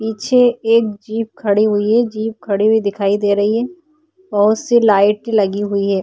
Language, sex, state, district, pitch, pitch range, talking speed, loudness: Hindi, female, Maharashtra, Chandrapur, 220 Hz, 205-230 Hz, 190 wpm, -15 LUFS